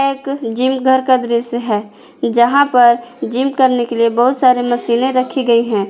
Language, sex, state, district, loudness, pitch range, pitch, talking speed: Hindi, female, Jharkhand, Palamu, -14 LUFS, 235-260 Hz, 245 Hz, 195 wpm